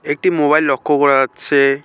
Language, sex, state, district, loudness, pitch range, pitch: Bengali, male, West Bengal, Alipurduar, -14 LUFS, 140-155 Hz, 145 Hz